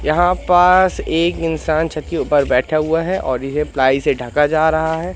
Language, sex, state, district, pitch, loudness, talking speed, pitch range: Hindi, male, Madhya Pradesh, Katni, 160 Hz, -16 LUFS, 210 wpm, 145-170 Hz